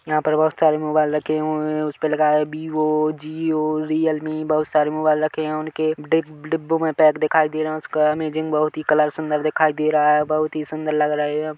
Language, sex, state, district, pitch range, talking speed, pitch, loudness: Hindi, male, Chhattisgarh, Kabirdham, 150-155 Hz, 235 wpm, 155 Hz, -20 LUFS